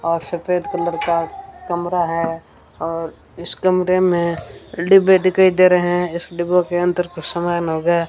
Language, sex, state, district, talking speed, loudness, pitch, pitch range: Hindi, female, Rajasthan, Bikaner, 165 wpm, -18 LUFS, 175 Hz, 170-180 Hz